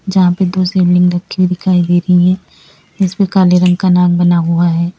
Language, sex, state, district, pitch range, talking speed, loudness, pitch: Hindi, female, Uttar Pradesh, Lalitpur, 175-185 Hz, 205 wpm, -12 LUFS, 180 Hz